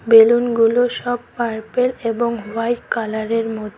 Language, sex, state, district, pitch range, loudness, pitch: Bengali, female, West Bengal, Cooch Behar, 225-240 Hz, -18 LUFS, 230 Hz